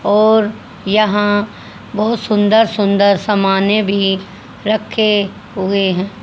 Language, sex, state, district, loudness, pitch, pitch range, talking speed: Hindi, female, Haryana, Rohtak, -14 LUFS, 205 Hz, 195-215 Hz, 95 wpm